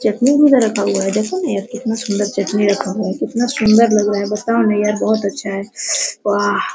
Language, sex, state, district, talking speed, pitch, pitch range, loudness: Hindi, female, Bihar, Araria, 240 wpm, 210 Hz, 200-225 Hz, -16 LUFS